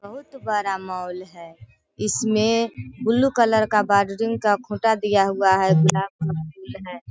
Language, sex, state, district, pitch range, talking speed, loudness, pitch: Hindi, female, Bihar, Sitamarhi, 175-220 Hz, 135 wpm, -21 LUFS, 200 Hz